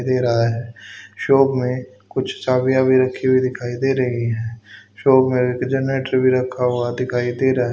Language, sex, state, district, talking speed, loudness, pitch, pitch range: Hindi, male, Haryana, Charkhi Dadri, 195 wpm, -19 LUFS, 125 Hz, 120-130 Hz